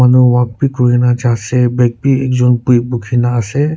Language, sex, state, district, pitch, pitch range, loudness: Nagamese, male, Nagaland, Kohima, 125 Hz, 120-125 Hz, -12 LUFS